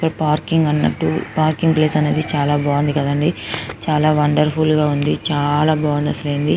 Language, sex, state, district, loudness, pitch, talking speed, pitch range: Telugu, female, Telangana, Karimnagar, -17 LUFS, 150 Hz, 120 wpm, 145-155 Hz